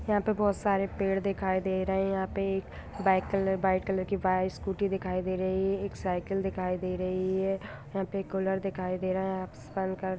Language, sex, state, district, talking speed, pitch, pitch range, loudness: Hindi, female, Bihar, Vaishali, 235 wpm, 190 Hz, 185-195 Hz, -30 LUFS